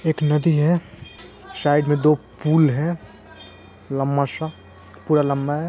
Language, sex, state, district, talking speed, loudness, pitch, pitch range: Hindi, male, Bihar, Saran, 125 wpm, -20 LUFS, 145 Hz, 110-155 Hz